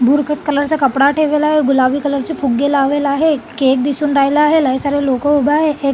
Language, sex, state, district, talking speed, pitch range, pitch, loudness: Marathi, female, Maharashtra, Solapur, 220 wpm, 275-300 Hz, 285 Hz, -14 LUFS